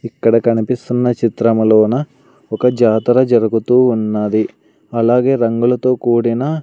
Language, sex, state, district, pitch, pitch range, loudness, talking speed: Telugu, male, Andhra Pradesh, Sri Satya Sai, 120 Hz, 115-125 Hz, -14 LUFS, 90 wpm